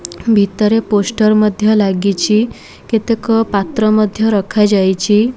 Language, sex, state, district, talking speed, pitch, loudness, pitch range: Odia, female, Odisha, Malkangiri, 90 wpm, 215 Hz, -13 LUFS, 200-220 Hz